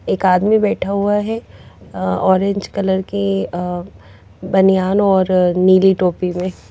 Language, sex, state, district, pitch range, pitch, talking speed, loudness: Hindi, female, Odisha, Nuapada, 180-195 Hz, 185 Hz, 135 wpm, -16 LUFS